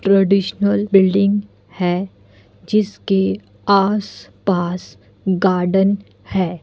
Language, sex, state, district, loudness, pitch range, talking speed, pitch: Hindi, female, Bihar, Kishanganj, -18 LUFS, 175-200 Hz, 65 wpm, 195 Hz